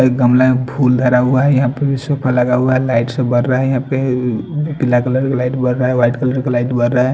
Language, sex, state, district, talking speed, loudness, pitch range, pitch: Hindi, male, Punjab, Fazilka, 285 wpm, -15 LUFS, 125-130 Hz, 130 Hz